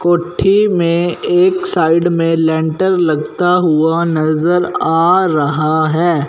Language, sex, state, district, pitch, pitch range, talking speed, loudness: Hindi, male, Punjab, Fazilka, 170 Hz, 160-180 Hz, 115 wpm, -13 LUFS